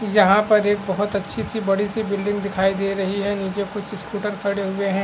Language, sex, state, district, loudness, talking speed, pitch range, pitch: Hindi, male, Bihar, Araria, -21 LUFS, 215 wpm, 195-205 Hz, 200 Hz